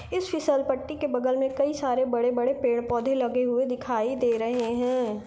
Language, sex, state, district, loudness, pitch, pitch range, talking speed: Hindi, female, Bihar, East Champaran, -26 LUFS, 250 Hz, 240-270 Hz, 225 wpm